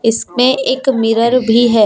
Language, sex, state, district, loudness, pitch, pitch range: Hindi, female, Jharkhand, Deoghar, -13 LUFS, 240 Hz, 225-260 Hz